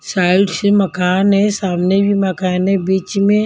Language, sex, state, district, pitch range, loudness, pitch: Hindi, female, Maharashtra, Mumbai Suburban, 185-200 Hz, -15 LUFS, 195 Hz